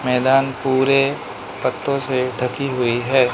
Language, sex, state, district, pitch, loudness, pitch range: Hindi, male, Manipur, Imphal West, 130 Hz, -19 LUFS, 125-135 Hz